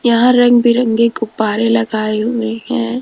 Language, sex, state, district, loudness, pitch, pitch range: Hindi, female, Rajasthan, Jaipur, -14 LUFS, 230 Hz, 225-240 Hz